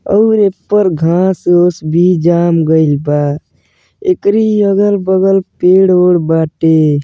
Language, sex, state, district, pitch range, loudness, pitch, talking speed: Bhojpuri, male, Uttar Pradesh, Gorakhpur, 160-200 Hz, -11 LUFS, 180 Hz, 130 wpm